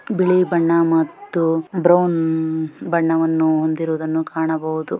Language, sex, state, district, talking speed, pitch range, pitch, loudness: Kannada, female, Karnataka, Shimoga, 85 wpm, 160-170 Hz, 165 Hz, -18 LUFS